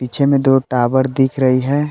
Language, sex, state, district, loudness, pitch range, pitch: Hindi, male, Jharkhand, Palamu, -15 LUFS, 130-135 Hz, 135 Hz